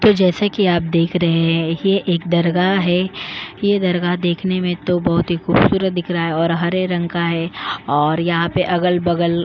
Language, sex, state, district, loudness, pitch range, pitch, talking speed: Hindi, female, Goa, North and South Goa, -17 LUFS, 170-185 Hz, 175 Hz, 205 wpm